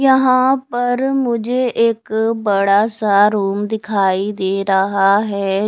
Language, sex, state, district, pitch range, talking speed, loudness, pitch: Hindi, female, Punjab, Fazilka, 200-245 Hz, 115 wpm, -16 LUFS, 215 Hz